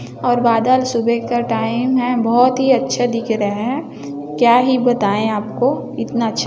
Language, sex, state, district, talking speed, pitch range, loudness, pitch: Hindi, female, Chhattisgarh, Bilaspur, 165 wpm, 225-250 Hz, -16 LUFS, 235 Hz